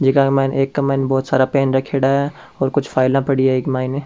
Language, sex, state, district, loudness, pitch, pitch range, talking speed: Rajasthani, male, Rajasthan, Churu, -17 LUFS, 135 Hz, 130-140 Hz, 280 wpm